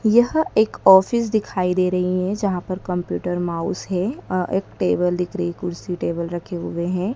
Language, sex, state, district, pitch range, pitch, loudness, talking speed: Hindi, male, Madhya Pradesh, Dhar, 175-200 Hz, 185 Hz, -21 LUFS, 185 wpm